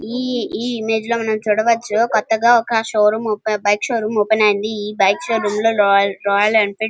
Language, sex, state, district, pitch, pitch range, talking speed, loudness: Telugu, female, Andhra Pradesh, Krishna, 220 Hz, 210-225 Hz, 165 wpm, -17 LUFS